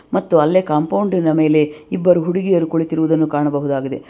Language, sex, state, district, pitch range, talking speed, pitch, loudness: Kannada, female, Karnataka, Bangalore, 150-180 Hz, 115 wpm, 160 Hz, -16 LUFS